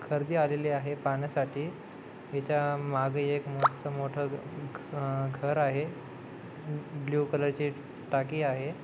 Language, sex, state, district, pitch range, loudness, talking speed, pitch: Marathi, male, Maharashtra, Dhule, 140-150 Hz, -31 LUFS, 115 wpm, 145 Hz